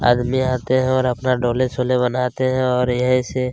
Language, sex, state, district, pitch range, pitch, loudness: Hindi, male, Chhattisgarh, Kabirdham, 125-130 Hz, 125 Hz, -19 LUFS